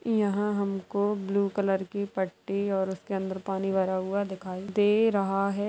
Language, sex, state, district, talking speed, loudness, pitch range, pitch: Hindi, female, Bihar, Darbhanga, 170 wpm, -28 LUFS, 190-200 Hz, 195 Hz